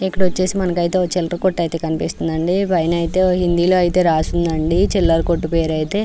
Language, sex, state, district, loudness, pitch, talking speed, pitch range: Telugu, female, Andhra Pradesh, Anantapur, -17 LUFS, 175 Hz, 180 wpm, 165-185 Hz